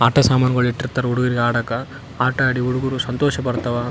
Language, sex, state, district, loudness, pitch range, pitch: Kannada, male, Karnataka, Raichur, -19 LUFS, 120-130 Hz, 125 Hz